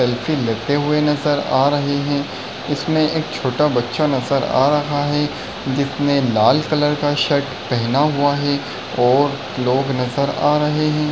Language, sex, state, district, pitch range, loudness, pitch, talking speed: Hindi, male, Uttar Pradesh, Varanasi, 130-150 Hz, -18 LUFS, 145 Hz, 155 wpm